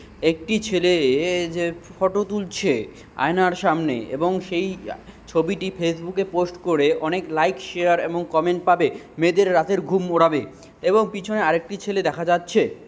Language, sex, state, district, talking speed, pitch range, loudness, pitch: Bengali, male, West Bengal, Dakshin Dinajpur, 160 wpm, 165-190 Hz, -22 LUFS, 175 Hz